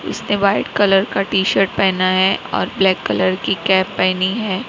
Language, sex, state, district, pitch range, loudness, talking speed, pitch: Hindi, female, Maharashtra, Mumbai Suburban, 185-195 Hz, -16 LUFS, 190 wpm, 190 Hz